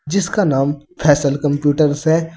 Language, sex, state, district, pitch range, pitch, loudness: Hindi, male, Uttar Pradesh, Saharanpur, 145-165 Hz, 150 Hz, -16 LUFS